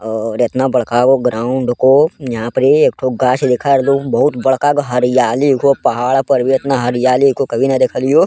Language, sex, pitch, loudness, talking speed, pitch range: Angika, male, 130 Hz, -13 LUFS, 195 wpm, 125-140 Hz